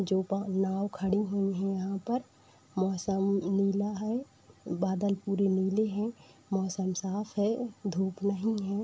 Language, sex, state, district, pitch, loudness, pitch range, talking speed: Hindi, female, Uttar Pradesh, Budaun, 195 Hz, -31 LUFS, 190-205 Hz, 140 wpm